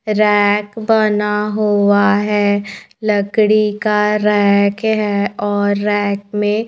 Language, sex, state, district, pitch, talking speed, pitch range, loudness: Hindi, female, Madhya Pradesh, Bhopal, 210 Hz, 100 wpm, 205-210 Hz, -15 LUFS